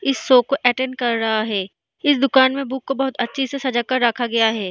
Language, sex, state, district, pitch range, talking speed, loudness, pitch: Hindi, female, Bihar, East Champaran, 235-270 Hz, 240 wpm, -19 LUFS, 255 Hz